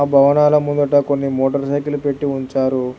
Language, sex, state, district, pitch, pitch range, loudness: Telugu, male, Telangana, Hyderabad, 140 Hz, 135-145 Hz, -17 LUFS